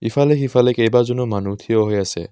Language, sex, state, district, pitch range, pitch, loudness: Assamese, male, Assam, Kamrup Metropolitan, 100-125 Hz, 115 Hz, -17 LUFS